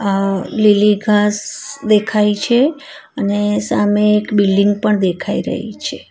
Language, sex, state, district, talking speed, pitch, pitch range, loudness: Gujarati, female, Gujarat, Valsad, 130 wpm, 210 Hz, 205-215 Hz, -15 LUFS